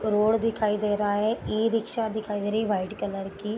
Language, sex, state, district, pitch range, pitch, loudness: Hindi, female, Bihar, Gopalganj, 205-220 Hz, 210 Hz, -26 LUFS